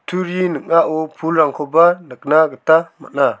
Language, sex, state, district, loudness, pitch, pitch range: Garo, male, Meghalaya, South Garo Hills, -16 LUFS, 160 Hz, 155-170 Hz